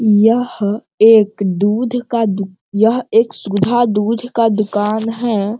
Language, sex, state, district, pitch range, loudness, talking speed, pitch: Hindi, male, Bihar, Sitamarhi, 205-230 Hz, -15 LUFS, 130 wpm, 220 Hz